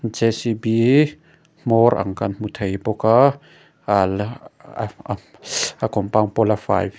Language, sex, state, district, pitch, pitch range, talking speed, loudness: Mizo, male, Mizoram, Aizawl, 110 Hz, 100-125 Hz, 110 wpm, -20 LUFS